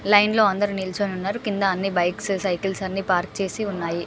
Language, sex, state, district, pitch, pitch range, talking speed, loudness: Telugu, female, Telangana, Karimnagar, 195 Hz, 185-205 Hz, 190 wpm, -23 LUFS